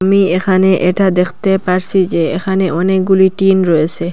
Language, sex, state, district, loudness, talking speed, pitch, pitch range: Bengali, female, Assam, Hailakandi, -12 LUFS, 145 wpm, 185 Hz, 180-190 Hz